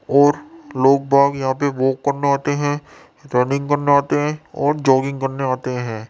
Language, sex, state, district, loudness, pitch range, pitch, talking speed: Hindi, male, Rajasthan, Jaipur, -18 LUFS, 130-145 Hz, 140 Hz, 165 wpm